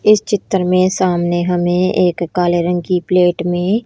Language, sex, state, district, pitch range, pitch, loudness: Hindi, female, Haryana, Rohtak, 175-185 Hz, 180 Hz, -15 LUFS